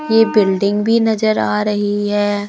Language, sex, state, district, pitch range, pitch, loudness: Hindi, male, Madhya Pradesh, Umaria, 205-220 Hz, 210 Hz, -15 LUFS